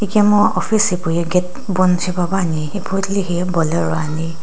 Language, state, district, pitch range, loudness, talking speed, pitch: Sumi, Nagaland, Dimapur, 165-195 Hz, -17 LUFS, 135 wpm, 180 Hz